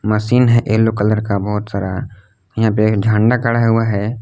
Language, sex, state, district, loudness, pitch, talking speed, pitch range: Hindi, male, Jharkhand, Palamu, -15 LUFS, 110 Hz, 200 wpm, 105-115 Hz